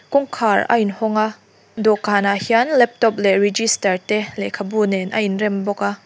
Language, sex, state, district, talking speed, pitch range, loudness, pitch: Mizo, female, Mizoram, Aizawl, 190 wpm, 200-220 Hz, -18 LUFS, 210 Hz